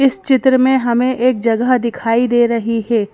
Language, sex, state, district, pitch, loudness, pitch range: Hindi, female, Madhya Pradesh, Bhopal, 240 Hz, -14 LUFS, 230-255 Hz